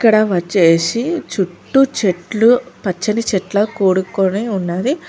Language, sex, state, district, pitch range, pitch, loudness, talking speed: Telugu, female, Telangana, Mahabubabad, 185-230 Hz, 205 Hz, -16 LUFS, 80 wpm